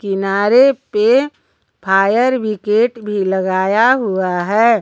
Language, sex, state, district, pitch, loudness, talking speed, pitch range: Hindi, female, Jharkhand, Garhwa, 210 Hz, -14 LUFS, 100 wpm, 195-250 Hz